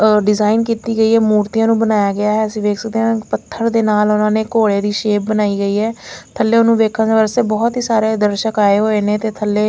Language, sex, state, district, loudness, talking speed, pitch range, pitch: Hindi, female, Chandigarh, Chandigarh, -15 LUFS, 230 wpm, 210-225 Hz, 215 Hz